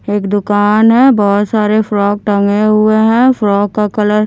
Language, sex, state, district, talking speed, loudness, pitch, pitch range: Hindi, female, Himachal Pradesh, Shimla, 180 wpm, -11 LUFS, 210 Hz, 205-215 Hz